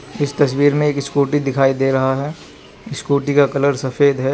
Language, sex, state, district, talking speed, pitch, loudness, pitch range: Hindi, male, Jharkhand, Garhwa, 195 wpm, 140 Hz, -17 LUFS, 135-145 Hz